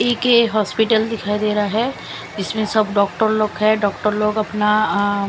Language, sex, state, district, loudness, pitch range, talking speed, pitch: Hindi, female, Chandigarh, Chandigarh, -18 LUFS, 205-220 Hz, 180 wpm, 215 Hz